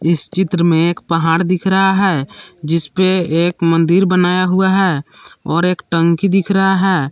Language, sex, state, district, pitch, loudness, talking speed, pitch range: Hindi, male, Jharkhand, Palamu, 180 Hz, -14 LUFS, 175 wpm, 165-190 Hz